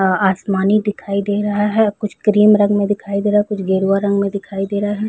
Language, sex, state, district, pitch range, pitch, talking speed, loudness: Hindi, female, Chhattisgarh, Balrampur, 200-210 Hz, 205 Hz, 260 wpm, -16 LUFS